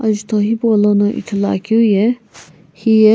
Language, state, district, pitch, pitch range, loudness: Sumi, Nagaland, Kohima, 210 Hz, 200-220 Hz, -15 LUFS